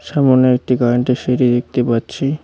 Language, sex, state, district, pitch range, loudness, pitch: Bengali, male, West Bengal, Cooch Behar, 120-135 Hz, -15 LUFS, 125 Hz